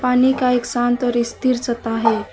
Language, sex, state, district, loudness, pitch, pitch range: Hindi, female, West Bengal, Alipurduar, -18 LUFS, 245 Hz, 235-250 Hz